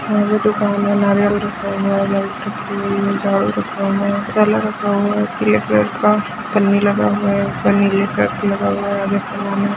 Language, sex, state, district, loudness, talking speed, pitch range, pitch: Hindi, female, Chhattisgarh, Bastar, -17 LUFS, 185 wpm, 200-210 Hz, 205 Hz